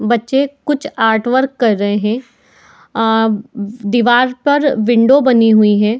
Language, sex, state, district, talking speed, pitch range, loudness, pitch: Hindi, female, Jharkhand, Jamtara, 130 wpm, 220-265 Hz, -13 LUFS, 235 Hz